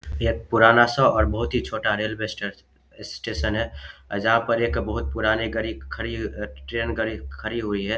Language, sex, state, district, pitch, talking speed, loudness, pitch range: Hindi, male, Bihar, Samastipur, 110 Hz, 190 wpm, -23 LUFS, 100-115 Hz